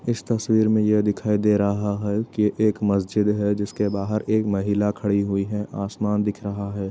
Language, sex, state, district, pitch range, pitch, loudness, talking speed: Hindi, male, Uttar Pradesh, Etah, 100-105 Hz, 105 Hz, -22 LUFS, 200 wpm